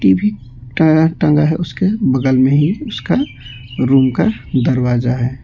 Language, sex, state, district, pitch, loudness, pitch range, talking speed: Hindi, male, West Bengal, Alipurduar, 130 Hz, -15 LUFS, 125-160 Hz, 120 wpm